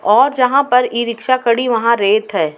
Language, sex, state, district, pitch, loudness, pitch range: Hindi, female, Uttar Pradesh, Muzaffarnagar, 235 Hz, -14 LUFS, 220-250 Hz